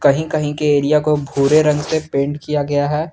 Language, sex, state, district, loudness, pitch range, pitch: Hindi, male, Jharkhand, Garhwa, -17 LUFS, 145-150 Hz, 150 Hz